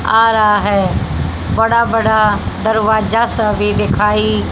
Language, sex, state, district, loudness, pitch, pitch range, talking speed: Hindi, female, Haryana, Rohtak, -14 LUFS, 215 Hz, 205-225 Hz, 120 wpm